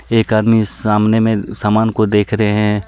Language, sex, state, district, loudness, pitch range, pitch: Hindi, male, Jharkhand, Deoghar, -14 LUFS, 105-110 Hz, 110 Hz